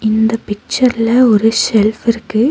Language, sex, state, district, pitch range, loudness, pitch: Tamil, female, Tamil Nadu, Nilgiris, 215-235 Hz, -13 LUFS, 225 Hz